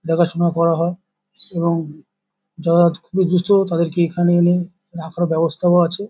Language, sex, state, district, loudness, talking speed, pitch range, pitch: Bengali, male, West Bengal, Paschim Medinipur, -18 LUFS, 135 wpm, 170-180 Hz, 175 Hz